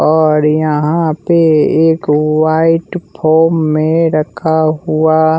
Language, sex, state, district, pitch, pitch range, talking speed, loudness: Hindi, male, Bihar, West Champaran, 160 Hz, 155-160 Hz, 100 wpm, -12 LUFS